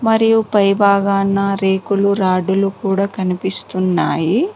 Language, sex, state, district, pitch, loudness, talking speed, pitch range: Telugu, female, Telangana, Mahabubabad, 195 Hz, -16 LUFS, 105 wpm, 190-200 Hz